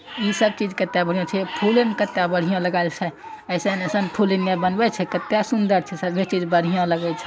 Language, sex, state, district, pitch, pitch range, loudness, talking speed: Angika, male, Bihar, Begusarai, 185 Hz, 180-210 Hz, -21 LUFS, 215 wpm